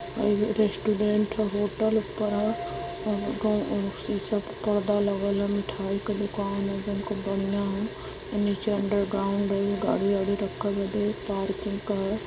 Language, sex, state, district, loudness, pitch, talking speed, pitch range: Hindi, female, Uttar Pradesh, Varanasi, -27 LUFS, 205 Hz, 140 wpm, 200-210 Hz